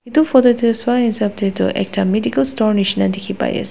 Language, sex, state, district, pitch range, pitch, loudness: Nagamese, female, Nagaland, Dimapur, 195-240 Hz, 215 Hz, -16 LUFS